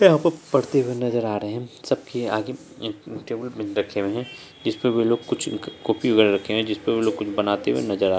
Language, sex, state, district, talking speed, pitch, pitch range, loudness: Hindi, female, Bihar, Saharsa, 240 wpm, 115 Hz, 105-125 Hz, -24 LUFS